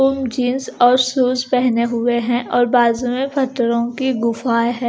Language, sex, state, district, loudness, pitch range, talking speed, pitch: Hindi, female, Punjab, Kapurthala, -17 LUFS, 235-255 Hz, 160 wpm, 245 Hz